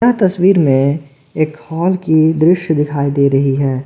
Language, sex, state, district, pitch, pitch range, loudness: Hindi, male, Jharkhand, Garhwa, 155 Hz, 140-175 Hz, -14 LUFS